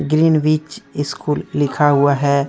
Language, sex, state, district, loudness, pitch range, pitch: Hindi, male, Jharkhand, Deoghar, -17 LUFS, 140-155 Hz, 145 Hz